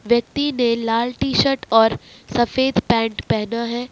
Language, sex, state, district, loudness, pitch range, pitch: Hindi, male, Jharkhand, Ranchi, -19 LUFS, 230-250 Hz, 235 Hz